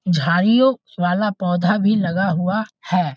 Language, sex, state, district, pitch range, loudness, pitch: Hindi, male, Bihar, Muzaffarpur, 175-210 Hz, -18 LUFS, 185 Hz